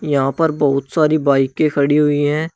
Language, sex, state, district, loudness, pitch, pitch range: Hindi, male, Uttar Pradesh, Shamli, -16 LUFS, 145 Hz, 140-155 Hz